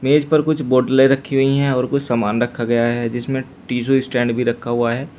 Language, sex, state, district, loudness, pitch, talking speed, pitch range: Hindi, male, Uttar Pradesh, Shamli, -18 LUFS, 130 Hz, 230 wpm, 120-135 Hz